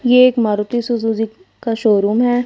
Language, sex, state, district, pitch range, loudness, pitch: Hindi, female, Punjab, Fazilka, 220-245 Hz, -16 LUFS, 235 Hz